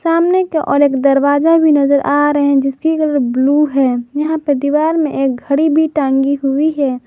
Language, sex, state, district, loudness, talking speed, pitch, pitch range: Hindi, female, Jharkhand, Garhwa, -13 LUFS, 205 wpm, 285 Hz, 275-310 Hz